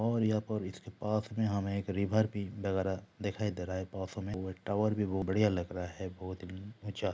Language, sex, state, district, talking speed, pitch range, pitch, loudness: Hindi, male, Jharkhand, Jamtara, 195 wpm, 95-105 Hz, 100 Hz, -35 LUFS